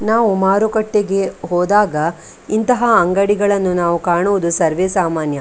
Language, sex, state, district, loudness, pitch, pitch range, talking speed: Kannada, female, Karnataka, Dakshina Kannada, -16 LUFS, 195 Hz, 175-210 Hz, 110 wpm